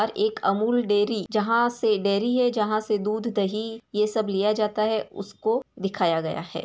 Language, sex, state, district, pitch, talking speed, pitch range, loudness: Hindi, female, Uttar Pradesh, Ghazipur, 215 Hz, 190 wpm, 205-230 Hz, -24 LUFS